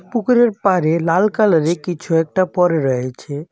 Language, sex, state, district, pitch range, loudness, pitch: Bengali, male, Tripura, West Tripura, 160-200 Hz, -16 LUFS, 175 Hz